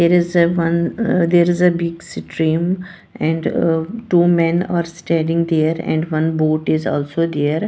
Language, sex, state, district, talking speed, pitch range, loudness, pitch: English, female, Punjab, Pathankot, 180 wpm, 160-175 Hz, -17 LUFS, 170 Hz